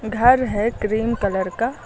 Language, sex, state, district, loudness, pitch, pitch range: Hindi, female, Uttar Pradesh, Lucknow, -20 LUFS, 220 Hz, 210-235 Hz